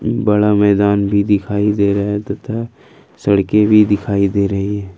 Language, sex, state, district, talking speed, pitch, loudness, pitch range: Hindi, male, Jharkhand, Ranchi, 155 wpm, 100 Hz, -15 LUFS, 100-105 Hz